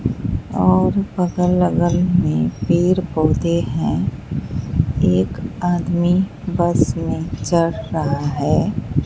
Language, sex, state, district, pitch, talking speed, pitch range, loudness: Hindi, female, Bihar, Katihar, 170 Hz, 95 wpm, 145-180 Hz, -19 LUFS